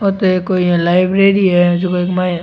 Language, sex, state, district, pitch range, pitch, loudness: Rajasthani, male, Rajasthan, Churu, 175-190 Hz, 180 Hz, -13 LUFS